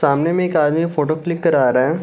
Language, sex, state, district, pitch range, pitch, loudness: Hindi, male, Bihar, Gaya, 150-170 Hz, 160 Hz, -17 LUFS